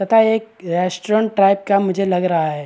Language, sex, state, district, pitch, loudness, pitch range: Hindi, male, Maharashtra, Aurangabad, 195 Hz, -17 LUFS, 180-215 Hz